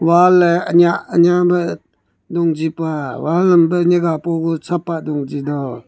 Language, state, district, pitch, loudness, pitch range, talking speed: Nyishi, Arunachal Pradesh, Papum Pare, 165 Hz, -16 LUFS, 150-175 Hz, 155 wpm